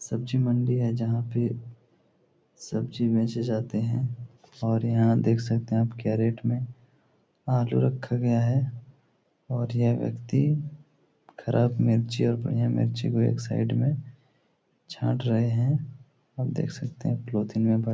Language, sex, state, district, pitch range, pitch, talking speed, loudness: Hindi, male, Bihar, Supaul, 115-130 Hz, 120 Hz, 150 wpm, -26 LUFS